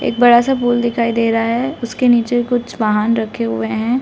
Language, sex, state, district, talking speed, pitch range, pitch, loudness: Hindi, female, Uttar Pradesh, Varanasi, 225 wpm, 225-245 Hz, 235 Hz, -15 LUFS